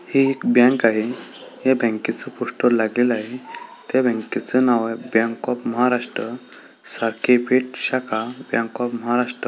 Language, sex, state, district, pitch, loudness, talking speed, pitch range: Marathi, male, Maharashtra, Solapur, 120 Hz, -21 LUFS, 150 wpm, 115-130 Hz